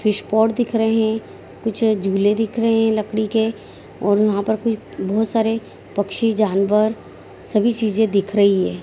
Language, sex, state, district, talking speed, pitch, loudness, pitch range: Hindi, female, Bihar, Kishanganj, 165 wpm, 220 Hz, -19 LUFS, 205-225 Hz